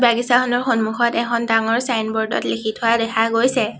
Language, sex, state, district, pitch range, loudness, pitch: Assamese, female, Assam, Sonitpur, 225-240 Hz, -18 LUFS, 235 Hz